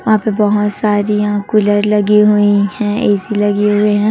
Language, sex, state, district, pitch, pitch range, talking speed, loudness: Hindi, female, Chhattisgarh, Raipur, 210 Hz, 205-210 Hz, 190 wpm, -13 LUFS